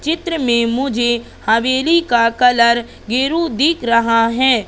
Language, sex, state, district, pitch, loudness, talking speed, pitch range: Hindi, female, Madhya Pradesh, Katni, 240 Hz, -15 LUFS, 130 wpm, 235-275 Hz